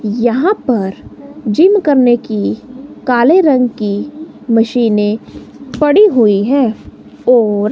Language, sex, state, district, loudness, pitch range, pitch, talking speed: Hindi, female, Himachal Pradesh, Shimla, -12 LUFS, 220-285 Hz, 245 Hz, 100 wpm